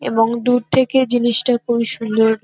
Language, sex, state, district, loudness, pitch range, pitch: Bengali, female, West Bengal, North 24 Parganas, -16 LUFS, 225-250 Hz, 240 Hz